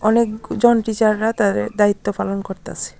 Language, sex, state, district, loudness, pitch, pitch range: Bengali, female, Tripura, Unakoti, -19 LUFS, 215 Hz, 200-225 Hz